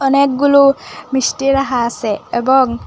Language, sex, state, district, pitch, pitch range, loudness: Bengali, female, Assam, Hailakandi, 265 Hz, 245-275 Hz, -14 LUFS